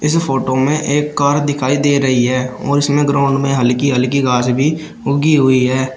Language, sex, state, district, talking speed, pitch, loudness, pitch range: Hindi, male, Uttar Pradesh, Shamli, 200 wpm, 140 Hz, -14 LUFS, 130-145 Hz